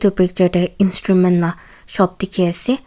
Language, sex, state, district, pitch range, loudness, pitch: Nagamese, female, Nagaland, Kohima, 180-195 Hz, -17 LUFS, 185 Hz